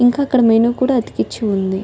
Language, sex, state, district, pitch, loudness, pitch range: Telugu, female, Telangana, Nalgonda, 235 Hz, -16 LUFS, 215-255 Hz